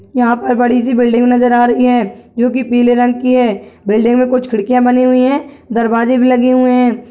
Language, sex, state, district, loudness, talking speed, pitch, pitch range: Hindi, female, Uttarakhand, Tehri Garhwal, -12 LUFS, 230 wpm, 245 Hz, 235-250 Hz